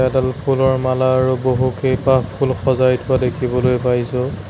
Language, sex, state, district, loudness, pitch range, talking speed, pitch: Assamese, male, Assam, Sonitpur, -17 LUFS, 125-130 Hz, 135 wpm, 130 Hz